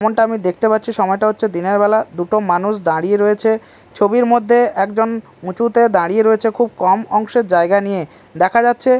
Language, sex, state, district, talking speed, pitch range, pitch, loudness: Bengali, male, Odisha, Malkangiri, 160 wpm, 190-225 Hz, 215 Hz, -15 LUFS